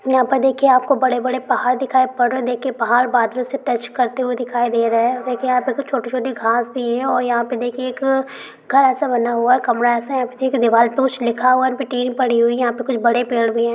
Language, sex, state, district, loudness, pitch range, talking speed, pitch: Hindi, female, Rajasthan, Nagaur, -18 LUFS, 240-260 Hz, 265 wpm, 250 Hz